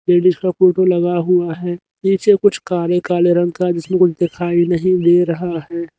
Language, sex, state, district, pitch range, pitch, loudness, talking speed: Hindi, male, Haryana, Rohtak, 175-185 Hz, 175 Hz, -16 LUFS, 190 wpm